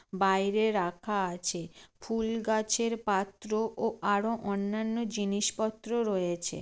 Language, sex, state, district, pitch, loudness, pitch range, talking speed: Bengali, female, West Bengal, Jalpaiguri, 210 Hz, -31 LUFS, 195-225 Hz, 110 wpm